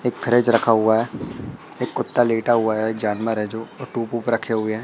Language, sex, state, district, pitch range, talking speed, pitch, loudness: Hindi, male, Madhya Pradesh, Katni, 110-120 Hz, 185 wpm, 115 Hz, -21 LUFS